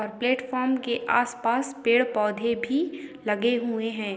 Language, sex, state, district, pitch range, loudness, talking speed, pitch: Hindi, female, Uttarakhand, Tehri Garhwal, 225-255 Hz, -25 LUFS, 115 wpm, 240 Hz